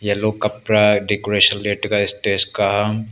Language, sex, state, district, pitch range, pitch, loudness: Wancho, male, Arunachal Pradesh, Longding, 100-105 Hz, 105 Hz, -17 LUFS